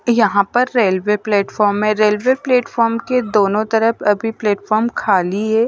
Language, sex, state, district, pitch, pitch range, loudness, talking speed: Hindi, female, Maharashtra, Mumbai Suburban, 215 Hz, 205-230 Hz, -16 LUFS, 150 wpm